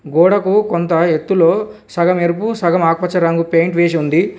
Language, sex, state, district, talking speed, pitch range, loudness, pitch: Telugu, male, Telangana, Komaram Bheem, 150 wpm, 165-190 Hz, -14 LUFS, 170 Hz